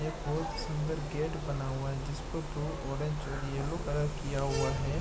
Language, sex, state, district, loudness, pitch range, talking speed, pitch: Hindi, male, Bihar, East Champaran, -35 LUFS, 140-155 Hz, 215 wpm, 145 Hz